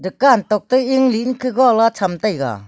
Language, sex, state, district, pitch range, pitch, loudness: Wancho, female, Arunachal Pradesh, Longding, 190-255 Hz, 230 Hz, -16 LUFS